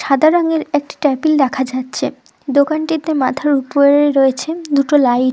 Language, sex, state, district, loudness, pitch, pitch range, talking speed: Bengali, female, West Bengal, Dakshin Dinajpur, -15 LUFS, 285 Hz, 265-310 Hz, 135 wpm